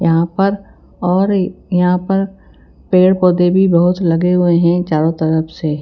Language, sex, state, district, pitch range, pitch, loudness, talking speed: Hindi, female, Himachal Pradesh, Shimla, 170-185 Hz, 180 Hz, -14 LUFS, 155 wpm